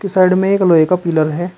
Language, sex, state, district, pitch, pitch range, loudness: Hindi, male, Uttar Pradesh, Shamli, 180 Hz, 165-185 Hz, -13 LUFS